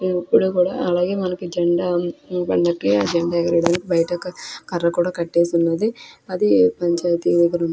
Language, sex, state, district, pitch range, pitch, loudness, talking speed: Telugu, female, Andhra Pradesh, Krishna, 170-180 Hz, 175 Hz, -19 LUFS, 140 wpm